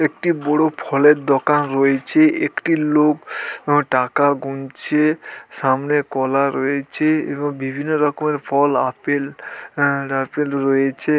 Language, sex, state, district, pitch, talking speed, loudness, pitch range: Bengali, male, West Bengal, Dakshin Dinajpur, 145 Hz, 115 wpm, -18 LUFS, 135-150 Hz